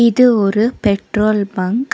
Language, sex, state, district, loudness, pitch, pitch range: Tamil, female, Tamil Nadu, Nilgiris, -15 LUFS, 215 Hz, 205-240 Hz